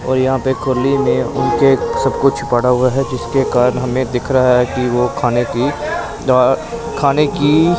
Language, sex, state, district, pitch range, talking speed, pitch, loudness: Hindi, male, Punjab, Pathankot, 125-140 Hz, 185 wpm, 130 Hz, -15 LUFS